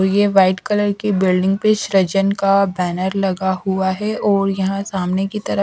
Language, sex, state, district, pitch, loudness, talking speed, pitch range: Hindi, female, Chhattisgarh, Raipur, 195 Hz, -17 LUFS, 180 wpm, 190-200 Hz